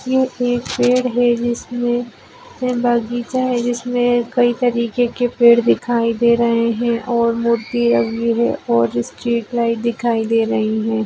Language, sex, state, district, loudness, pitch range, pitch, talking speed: Hindi, female, Maharashtra, Nagpur, -17 LUFS, 230-245 Hz, 235 Hz, 150 wpm